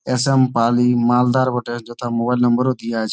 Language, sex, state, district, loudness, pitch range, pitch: Bengali, male, West Bengal, Malda, -17 LUFS, 120-125 Hz, 120 Hz